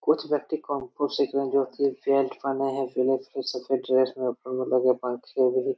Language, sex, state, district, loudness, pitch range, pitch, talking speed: Hindi, male, Jharkhand, Jamtara, -26 LUFS, 130-140 Hz, 135 Hz, 135 wpm